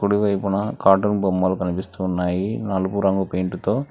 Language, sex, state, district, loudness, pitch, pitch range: Telugu, male, Telangana, Hyderabad, -21 LUFS, 95 Hz, 95-100 Hz